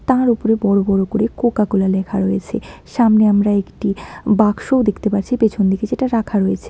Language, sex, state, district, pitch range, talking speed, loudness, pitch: Bengali, female, West Bengal, Alipurduar, 200-225 Hz, 170 wpm, -17 LUFS, 210 Hz